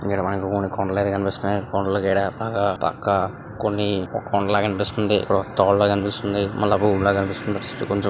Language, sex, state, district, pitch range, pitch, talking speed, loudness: Telugu, male, Andhra Pradesh, Srikakulam, 100-105 Hz, 100 Hz, 95 wpm, -22 LUFS